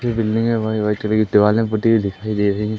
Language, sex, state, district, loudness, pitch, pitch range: Hindi, male, Madhya Pradesh, Umaria, -18 LUFS, 110 Hz, 105-110 Hz